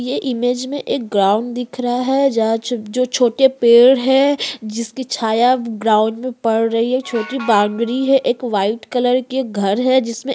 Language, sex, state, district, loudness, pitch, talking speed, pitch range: Hindi, female, Uttarakhand, Tehri Garhwal, -16 LUFS, 245 Hz, 190 wpm, 225-260 Hz